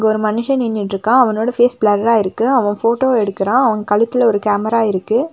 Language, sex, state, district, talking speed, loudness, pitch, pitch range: Tamil, female, Tamil Nadu, Nilgiris, 170 wpm, -15 LUFS, 220 Hz, 210-240 Hz